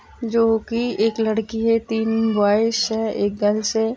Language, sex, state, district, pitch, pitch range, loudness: Hindi, female, Chhattisgarh, Sukma, 225 Hz, 220-230 Hz, -20 LUFS